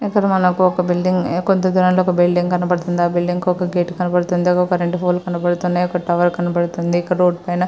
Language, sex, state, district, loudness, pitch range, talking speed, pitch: Telugu, female, Andhra Pradesh, Srikakulam, -17 LUFS, 175-180 Hz, 185 wpm, 180 Hz